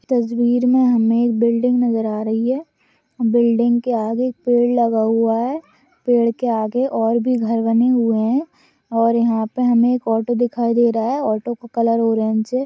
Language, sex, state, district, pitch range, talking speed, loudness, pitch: Hindi, female, Maharashtra, Pune, 230-245 Hz, 190 wpm, -18 LUFS, 235 Hz